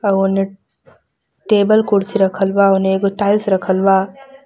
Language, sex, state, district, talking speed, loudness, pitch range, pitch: Bhojpuri, female, Jharkhand, Palamu, 150 wpm, -15 LUFS, 195-205 Hz, 195 Hz